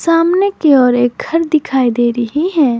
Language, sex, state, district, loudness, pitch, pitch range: Hindi, female, Jharkhand, Garhwa, -13 LUFS, 295 Hz, 245-330 Hz